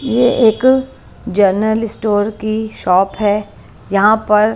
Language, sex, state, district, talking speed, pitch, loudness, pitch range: Hindi, female, Himachal Pradesh, Shimla, 120 wpm, 215 Hz, -14 LUFS, 205-225 Hz